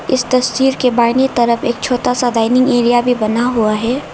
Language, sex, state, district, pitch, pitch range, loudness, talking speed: Hindi, female, Arunachal Pradesh, Lower Dibang Valley, 245 Hz, 235-255 Hz, -14 LUFS, 205 wpm